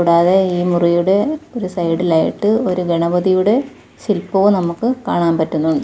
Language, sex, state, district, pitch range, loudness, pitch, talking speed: Malayalam, female, Kerala, Kollam, 170-205 Hz, -16 LUFS, 180 Hz, 125 wpm